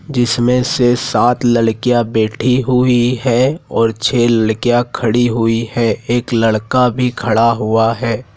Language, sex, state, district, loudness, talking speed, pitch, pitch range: Hindi, male, Madhya Pradesh, Dhar, -14 LUFS, 135 wpm, 120 Hz, 115-125 Hz